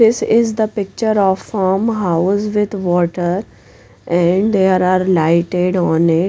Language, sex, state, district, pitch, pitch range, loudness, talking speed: English, female, Punjab, Pathankot, 185 Hz, 175-205 Hz, -15 LUFS, 135 wpm